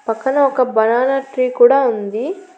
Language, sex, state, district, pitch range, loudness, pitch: Telugu, female, Andhra Pradesh, Annamaya, 235-270 Hz, -15 LUFS, 255 Hz